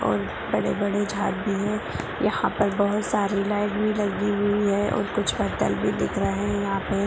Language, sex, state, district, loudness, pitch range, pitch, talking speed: Hindi, female, Bihar, Purnia, -24 LUFS, 200-205 Hz, 205 Hz, 195 wpm